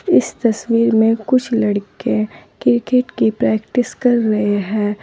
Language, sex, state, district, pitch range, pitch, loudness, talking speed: Hindi, female, Uttar Pradesh, Saharanpur, 210-240 Hz, 225 Hz, -17 LUFS, 130 wpm